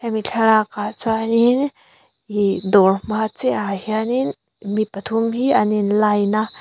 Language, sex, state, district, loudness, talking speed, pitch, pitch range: Mizo, female, Mizoram, Aizawl, -19 LUFS, 135 wpm, 215 Hz, 205-225 Hz